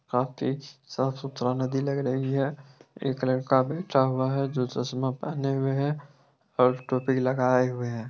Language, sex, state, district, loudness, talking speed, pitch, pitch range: Hindi, male, Bihar, Sitamarhi, -27 LUFS, 165 wpm, 130 Hz, 130-140 Hz